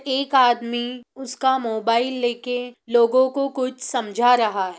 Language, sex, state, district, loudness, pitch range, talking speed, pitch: Hindi, female, Bihar, East Champaran, -21 LUFS, 235-260 Hz, 140 wpm, 245 Hz